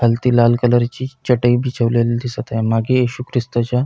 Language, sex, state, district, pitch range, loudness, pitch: Marathi, male, Maharashtra, Pune, 120-125 Hz, -17 LUFS, 120 Hz